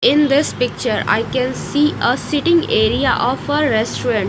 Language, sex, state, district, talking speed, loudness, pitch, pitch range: English, female, Odisha, Nuapada, 170 wpm, -17 LUFS, 290 Hz, 255-300 Hz